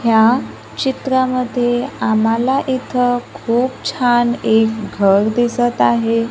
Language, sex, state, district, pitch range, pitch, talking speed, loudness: Marathi, female, Maharashtra, Gondia, 225-255 Hz, 240 Hz, 95 wpm, -16 LUFS